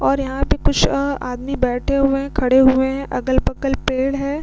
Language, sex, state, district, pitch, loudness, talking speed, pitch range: Hindi, female, Bihar, Vaishali, 270 Hz, -18 LUFS, 205 wpm, 260-275 Hz